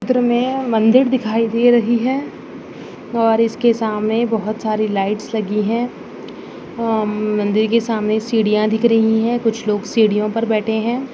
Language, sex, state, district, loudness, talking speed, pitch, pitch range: Hindi, female, Maharashtra, Solapur, -17 LUFS, 155 wpm, 225 Hz, 215-235 Hz